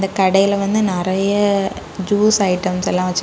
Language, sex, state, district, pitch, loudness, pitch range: Tamil, female, Tamil Nadu, Kanyakumari, 195 Hz, -17 LUFS, 185-200 Hz